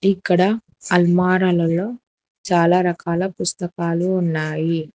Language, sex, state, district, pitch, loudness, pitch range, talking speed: Telugu, female, Telangana, Hyderabad, 175 Hz, -19 LUFS, 170-185 Hz, 75 wpm